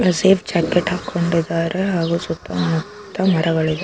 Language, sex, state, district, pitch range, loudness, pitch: Kannada, female, Karnataka, Chamarajanagar, 165-190 Hz, -19 LUFS, 170 Hz